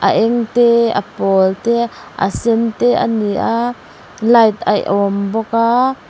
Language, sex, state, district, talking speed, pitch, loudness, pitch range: Mizo, female, Mizoram, Aizawl, 165 wpm, 230 Hz, -15 LUFS, 220-235 Hz